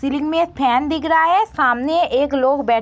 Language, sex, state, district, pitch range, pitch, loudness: Hindi, female, Bihar, East Champaran, 260-325 Hz, 285 Hz, -17 LUFS